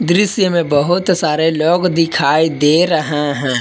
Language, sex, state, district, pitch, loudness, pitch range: Hindi, male, Jharkhand, Palamu, 160 Hz, -14 LUFS, 150-175 Hz